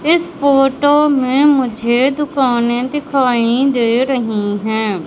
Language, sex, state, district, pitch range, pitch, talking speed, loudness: Hindi, male, Madhya Pradesh, Katni, 235-285 Hz, 260 Hz, 105 wpm, -14 LUFS